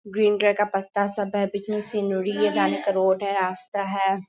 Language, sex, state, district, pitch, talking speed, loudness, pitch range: Hindi, female, Bihar, Sitamarhi, 200 Hz, 210 wpm, -24 LUFS, 195-205 Hz